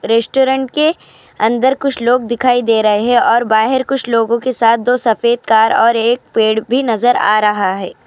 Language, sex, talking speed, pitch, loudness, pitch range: Urdu, female, 165 wpm, 235 Hz, -13 LUFS, 225-255 Hz